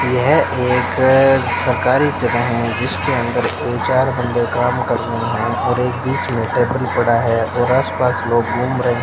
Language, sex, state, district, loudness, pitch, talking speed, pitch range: Hindi, male, Rajasthan, Bikaner, -16 LUFS, 120 Hz, 185 wpm, 120-130 Hz